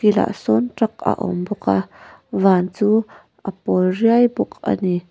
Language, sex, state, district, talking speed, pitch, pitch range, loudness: Mizo, female, Mizoram, Aizawl, 175 wpm, 195 Hz, 180-215 Hz, -19 LUFS